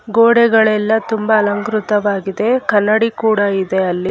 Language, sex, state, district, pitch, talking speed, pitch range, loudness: Kannada, female, Karnataka, Bangalore, 215 Hz, 100 wpm, 205-225 Hz, -14 LUFS